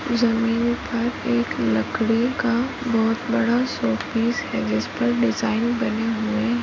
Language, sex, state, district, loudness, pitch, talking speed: Hindi, female, Chhattisgarh, Kabirdham, -22 LUFS, 230 Hz, 120 wpm